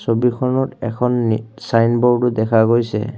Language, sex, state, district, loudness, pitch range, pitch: Assamese, male, Assam, Kamrup Metropolitan, -17 LUFS, 110-125 Hz, 115 Hz